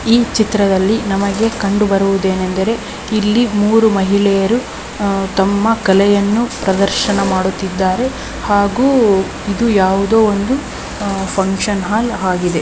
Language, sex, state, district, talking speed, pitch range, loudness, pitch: Kannada, female, Karnataka, Belgaum, 90 wpm, 195-225 Hz, -14 LUFS, 200 Hz